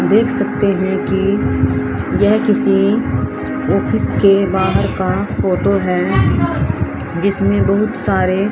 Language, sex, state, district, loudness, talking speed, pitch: Hindi, female, Haryana, Rohtak, -15 LUFS, 105 wpm, 190 Hz